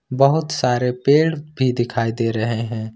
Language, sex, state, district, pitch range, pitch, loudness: Hindi, male, Jharkhand, Ranchi, 115-140 Hz, 125 Hz, -19 LUFS